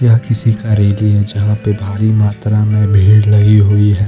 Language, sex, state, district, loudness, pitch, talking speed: Hindi, male, Jharkhand, Deoghar, -12 LUFS, 105 Hz, 205 wpm